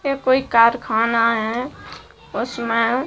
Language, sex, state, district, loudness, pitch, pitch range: Bhojpuri, female, Bihar, Saran, -18 LUFS, 235 Hz, 230-260 Hz